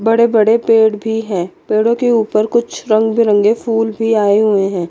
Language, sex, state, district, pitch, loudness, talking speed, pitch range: Hindi, female, Chandigarh, Chandigarh, 220 Hz, -14 LUFS, 195 wpm, 210-230 Hz